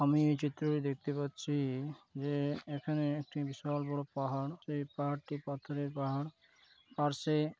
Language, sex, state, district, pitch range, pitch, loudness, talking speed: Bengali, male, West Bengal, Dakshin Dinajpur, 140-150 Hz, 145 Hz, -37 LUFS, 140 wpm